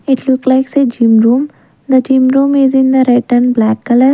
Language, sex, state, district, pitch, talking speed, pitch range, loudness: English, female, Punjab, Kapurthala, 260 Hz, 230 wpm, 245-270 Hz, -11 LUFS